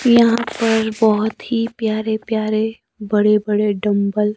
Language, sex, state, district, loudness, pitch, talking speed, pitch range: Hindi, male, Himachal Pradesh, Shimla, -18 LUFS, 220 Hz, 135 wpm, 210-225 Hz